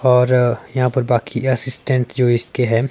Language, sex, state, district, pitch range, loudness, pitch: Hindi, male, Himachal Pradesh, Shimla, 120-130 Hz, -17 LUFS, 125 Hz